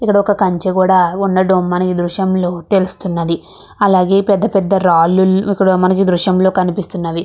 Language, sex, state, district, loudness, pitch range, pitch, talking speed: Telugu, female, Andhra Pradesh, Krishna, -14 LUFS, 180-195 Hz, 185 Hz, 125 wpm